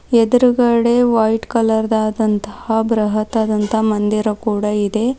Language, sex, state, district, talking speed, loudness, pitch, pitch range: Kannada, female, Karnataka, Bidar, 90 wpm, -16 LUFS, 220 Hz, 215-235 Hz